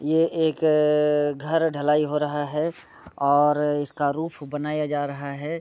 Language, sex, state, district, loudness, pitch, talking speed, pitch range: Hindi, male, Bihar, Sitamarhi, -23 LUFS, 150 Hz, 150 wpm, 145-155 Hz